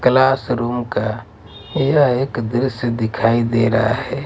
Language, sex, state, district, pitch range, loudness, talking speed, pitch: Hindi, male, Maharashtra, Mumbai Suburban, 110-130 Hz, -18 LUFS, 125 wpm, 120 Hz